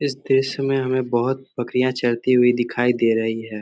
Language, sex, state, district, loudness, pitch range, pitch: Hindi, male, Bihar, Samastipur, -20 LUFS, 120-135 Hz, 125 Hz